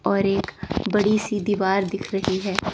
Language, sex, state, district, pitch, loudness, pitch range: Hindi, female, Chandigarh, Chandigarh, 200 Hz, -23 LUFS, 195-210 Hz